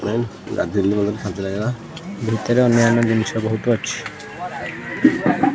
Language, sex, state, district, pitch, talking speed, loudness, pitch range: Odia, male, Odisha, Khordha, 110 Hz, 110 wpm, -20 LUFS, 105-115 Hz